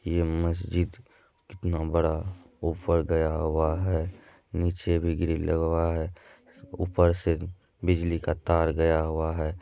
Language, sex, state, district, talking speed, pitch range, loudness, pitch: Maithili, male, Bihar, Madhepura, 125 wpm, 80-90 Hz, -27 LUFS, 85 Hz